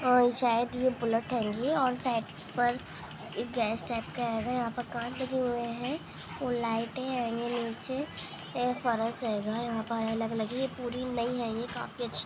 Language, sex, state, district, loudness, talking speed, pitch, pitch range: Hindi, female, Bihar, Purnia, -32 LUFS, 150 wpm, 240 Hz, 230-250 Hz